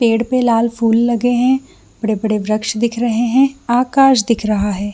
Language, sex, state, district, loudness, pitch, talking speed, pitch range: Hindi, female, Jharkhand, Jamtara, -15 LUFS, 235 Hz, 180 wpm, 220-245 Hz